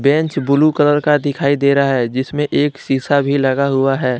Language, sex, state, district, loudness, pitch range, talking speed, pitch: Hindi, male, Jharkhand, Deoghar, -15 LUFS, 135-145 Hz, 215 wpm, 140 Hz